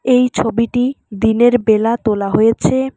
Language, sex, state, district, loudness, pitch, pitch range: Bengali, female, West Bengal, Alipurduar, -15 LUFS, 230 Hz, 220-250 Hz